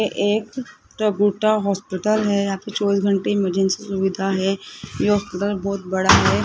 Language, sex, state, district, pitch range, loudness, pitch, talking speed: Hindi, male, Rajasthan, Jaipur, 190-210 Hz, -20 LUFS, 200 Hz, 170 wpm